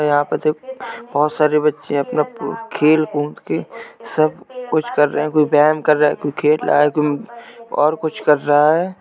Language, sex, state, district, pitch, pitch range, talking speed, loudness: Hindi, male, Uttar Pradesh, Jalaun, 150 Hz, 150-155 Hz, 200 wpm, -17 LUFS